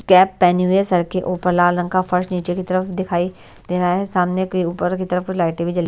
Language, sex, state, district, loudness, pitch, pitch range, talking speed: Hindi, male, Delhi, New Delhi, -19 LUFS, 180 Hz, 180-185 Hz, 255 wpm